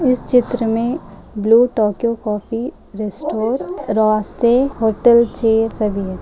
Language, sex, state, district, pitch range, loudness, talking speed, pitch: Hindi, female, Uttar Pradesh, Ghazipur, 215-245 Hz, -17 LUFS, 105 wpm, 225 Hz